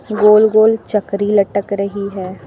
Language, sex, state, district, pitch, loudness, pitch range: Hindi, female, Uttar Pradesh, Lucknow, 200 Hz, -14 LUFS, 200-215 Hz